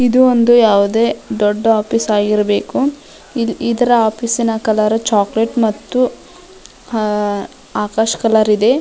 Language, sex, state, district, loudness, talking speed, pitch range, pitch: Kannada, female, Karnataka, Dharwad, -15 LUFS, 110 wpm, 210-235 Hz, 225 Hz